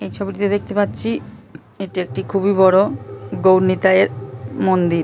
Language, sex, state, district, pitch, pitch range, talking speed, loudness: Bengali, female, West Bengal, Purulia, 185 Hz, 130-195 Hz, 155 wpm, -17 LUFS